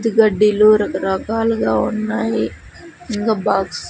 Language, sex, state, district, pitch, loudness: Telugu, female, Andhra Pradesh, Sri Satya Sai, 200 Hz, -17 LUFS